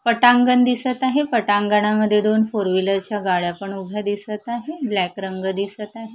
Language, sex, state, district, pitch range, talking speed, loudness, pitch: Marathi, female, Maharashtra, Mumbai Suburban, 195-240 Hz, 155 wpm, -20 LUFS, 210 Hz